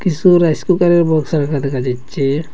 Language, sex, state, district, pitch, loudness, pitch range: Bengali, male, Assam, Hailakandi, 155 Hz, -15 LUFS, 140-175 Hz